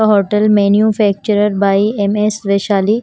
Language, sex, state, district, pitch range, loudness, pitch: Hindi, female, Himachal Pradesh, Shimla, 200-210 Hz, -13 LUFS, 210 Hz